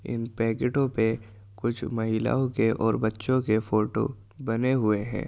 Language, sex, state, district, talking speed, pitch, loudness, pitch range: Hindi, male, Uttar Pradesh, Jyotiba Phule Nagar, 150 wpm, 115 Hz, -26 LUFS, 110-125 Hz